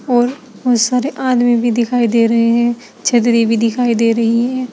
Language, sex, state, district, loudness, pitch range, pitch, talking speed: Hindi, female, Uttar Pradesh, Saharanpur, -14 LUFS, 230-250 Hz, 240 Hz, 190 wpm